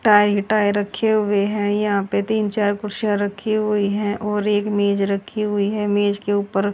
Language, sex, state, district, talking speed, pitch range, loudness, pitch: Hindi, female, Haryana, Charkhi Dadri, 205 wpm, 200-210 Hz, -20 LUFS, 205 Hz